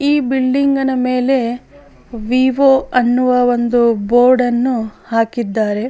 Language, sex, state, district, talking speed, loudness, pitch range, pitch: Kannada, female, Karnataka, Bellary, 110 wpm, -14 LUFS, 230-260 Hz, 245 Hz